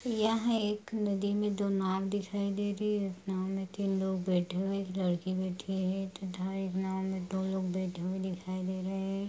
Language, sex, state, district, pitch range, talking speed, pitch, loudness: Hindi, female, Bihar, Bhagalpur, 185-200 Hz, 205 wpm, 190 Hz, -34 LUFS